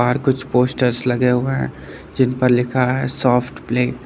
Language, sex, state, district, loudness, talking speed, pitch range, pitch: Hindi, male, Uttar Pradesh, Lucknow, -18 LUFS, 190 wpm, 125-130 Hz, 125 Hz